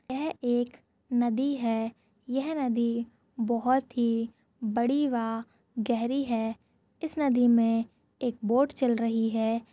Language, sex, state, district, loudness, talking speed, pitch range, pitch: Hindi, female, Goa, North and South Goa, -28 LUFS, 125 wpm, 230-255 Hz, 235 Hz